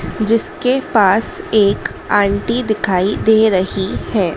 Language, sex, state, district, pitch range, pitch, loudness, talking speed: Hindi, female, Madhya Pradesh, Dhar, 195-220 Hz, 205 Hz, -15 LUFS, 110 wpm